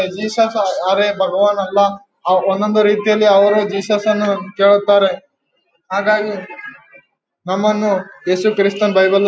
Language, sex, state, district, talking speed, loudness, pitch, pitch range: Kannada, male, Karnataka, Gulbarga, 110 wpm, -15 LUFS, 200 Hz, 195-210 Hz